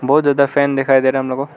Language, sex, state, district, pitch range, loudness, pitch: Hindi, male, Arunachal Pradesh, Lower Dibang Valley, 135-140 Hz, -15 LUFS, 135 Hz